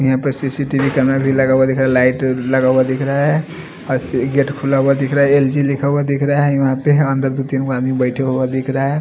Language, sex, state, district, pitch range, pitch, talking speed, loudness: Hindi, male, Chandigarh, Chandigarh, 130-140 Hz, 135 Hz, 220 wpm, -16 LUFS